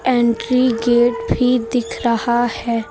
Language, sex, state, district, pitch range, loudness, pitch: Hindi, female, Uttar Pradesh, Lucknow, 235-245 Hz, -17 LUFS, 240 Hz